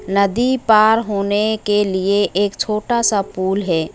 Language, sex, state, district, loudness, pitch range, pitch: Hindi, female, West Bengal, Alipurduar, -17 LUFS, 195-215 Hz, 205 Hz